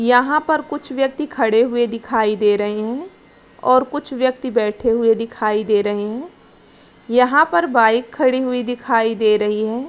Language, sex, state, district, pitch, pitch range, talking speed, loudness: Hindi, female, Bihar, Araria, 240 Hz, 220-260 Hz, 170 wpm, -18 LUFS